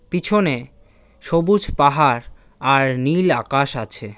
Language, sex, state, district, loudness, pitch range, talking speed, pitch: Bengali, male, West Bengal, Cooch Behar, -18 LUFS, 125-170 Hz, 100 wpm, 140 Hz